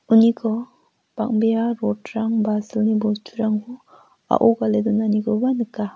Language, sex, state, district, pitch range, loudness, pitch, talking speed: Garo, female, Meghalaya, West Garo Hills, 215-230 Hz, -21 LUFS, 220 Hz, 100 wpm